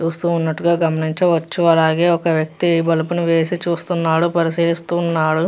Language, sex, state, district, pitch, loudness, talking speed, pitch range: Telugu, female, Andhra Pradesh, Chittoor, 170 Hz, -17 LUFS, 120 wpm, 160-170 Hz